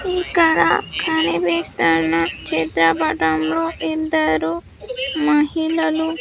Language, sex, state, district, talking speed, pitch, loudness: Telugu, female, Andhra Pradesh, Sri Satya Sai, 60 wpm, 170 Hz, -18 LUFS